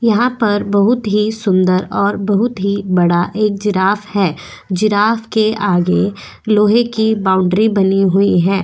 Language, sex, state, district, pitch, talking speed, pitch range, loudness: Hindi, female, Goa, North and South Goa, 205 Hz, 145 wpm, 190-215 Hz, -14 LUFS